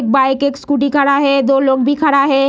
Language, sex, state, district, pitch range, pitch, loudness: Hindi, female, Bihar, Lakhisarai, 270-280 Hz, 275 Hz, -13 LUFS